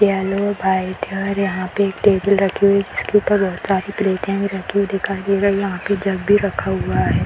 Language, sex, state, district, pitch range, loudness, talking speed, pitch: Hindi, female, Bihar, Madhepura, 190-200 Hz, -18 LUFS, 240 wpm, 195 Hz